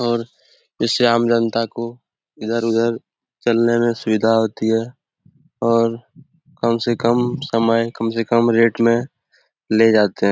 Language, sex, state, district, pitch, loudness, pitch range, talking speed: Hindi, male, Bihar, Jamui, 115 Hz, -18 LUFS, 115-120 Hz, 140 wpm